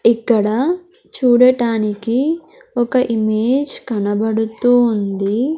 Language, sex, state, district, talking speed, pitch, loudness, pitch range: Telugu, female, Andhra Pradesh, Sri Satya Sai, 65 wpm, 235 Hz, -16 LUFS, 220-255 Hz